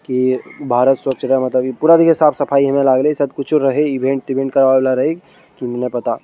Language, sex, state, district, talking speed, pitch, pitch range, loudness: Maithili, male, Bihar, Araria, 200 wpm, 135 Hz, 130-140 Hz, -15 LUFS